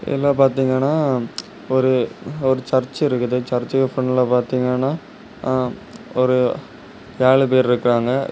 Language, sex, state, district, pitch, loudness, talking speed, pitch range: Tamil, male, Tamil Nadu, Kanyakumari, 130 Hz, -19 LUFS, 95 wpm, 125-135 Hz